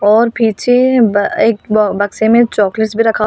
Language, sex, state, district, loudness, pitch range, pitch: Hindi, female, Delhi, New Delhi, -12 LUFS, 210-230 Hz, 220 Hz